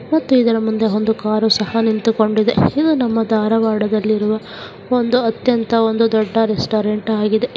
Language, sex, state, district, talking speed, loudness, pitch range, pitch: Kannada, female, Karnataka, Dharwad, 125 wpm, -16 LUFS, 215-230 Hz, 220 Hz